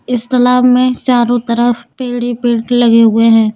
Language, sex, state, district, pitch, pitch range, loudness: Hindi, female, Jharkhand, Deoghar, 240 Hz, 235-250 Hz, -11 LUFS